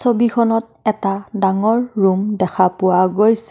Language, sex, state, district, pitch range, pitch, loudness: Assamese, female, Assam, Kamrup Metropolitan, 190-225 Hz, 210 Hz, -17 LUFS